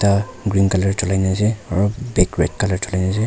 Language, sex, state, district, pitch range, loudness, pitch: Nagamese, male, Nagaland, Kohima, 95-105 Hz, -19 LUFS, 100 Hz